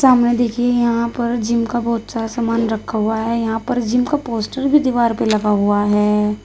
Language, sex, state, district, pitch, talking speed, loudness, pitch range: Hindi, female, Uttar Pradesh, Shamli, 230 Hz, 215 wpm, -17 LUFS, 220-240 Hz